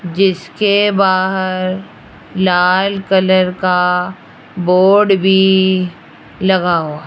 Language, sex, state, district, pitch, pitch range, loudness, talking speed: Hindi, female, Rajasthan, Jaipur, 185 Hz, 180-190 Hz, -13 LUFS, 75 wpm